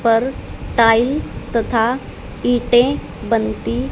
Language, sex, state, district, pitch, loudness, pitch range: Hindi, female, Haryana, Charkhi Dadri, 240 Hz, -18 LUFS, 230-245 Hz